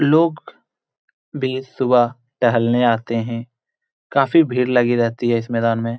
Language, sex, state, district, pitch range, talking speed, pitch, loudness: Hindi, male, Jharkhand, Jamtara, 115-135 Hz, 140 wpm, 120 Hz, -18 LUFS